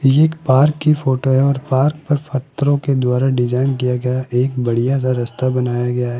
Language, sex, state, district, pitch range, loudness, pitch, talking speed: Hindi, male, Rajasthan, Jaipur, 125-140 Hz, -17 LUFS, 130 Hz, 215 wpm